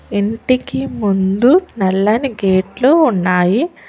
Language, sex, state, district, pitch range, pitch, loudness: Telugu, female, Telangana, Mahabubabad, 195-265 Hz, 220 Hz, -15 LUFS